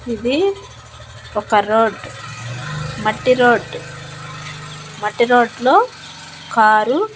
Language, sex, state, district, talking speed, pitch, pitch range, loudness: Telugu, female, Andhra Pradesh, Annamaya, 85 wpm, 215 Hz, 150-240 Hz, -16 LUFS